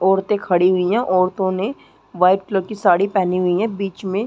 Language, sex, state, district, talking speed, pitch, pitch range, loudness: Hindi, female, Chhattisgarh, Sarguja, 225 wpm, 190 Hz, 185-200 Hz, -18 LUFS